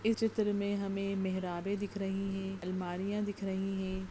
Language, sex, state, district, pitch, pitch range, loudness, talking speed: Hindi, female, Bihar, Jahanabad, 195 Hz, 190-200 Hz, -35 LUFS, 175 wpm